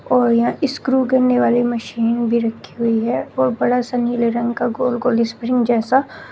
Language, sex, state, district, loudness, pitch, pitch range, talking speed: Hindi, female, Uttar Pradesh, Shamli, -18 LUFS, 240 Hz, 235-250 Hz, 190 wpm